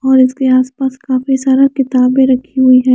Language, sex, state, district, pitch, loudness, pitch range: Hindi, female, Chandigarh, Chandigarh, 260 Hz, -12 LUFS, 255-265 Hz